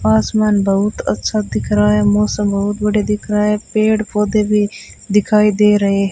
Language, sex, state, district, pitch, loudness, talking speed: Hindi, female, Rajasthan, Bikaner, 205 Hz, -15 LUFS, 185 wpm